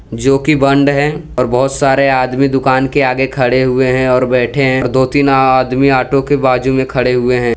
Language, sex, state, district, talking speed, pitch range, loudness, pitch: Hindi, male, Gujarat, Valsad, 205 wpm, 125-140 Hz, -12 LUFS, 130 Hz